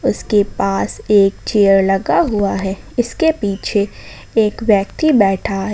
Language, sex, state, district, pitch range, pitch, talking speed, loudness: Hindi, female, Jharkhand, Ranchi, 195-215 Hz, 200 Hz, 135 wpm, -16 LUFS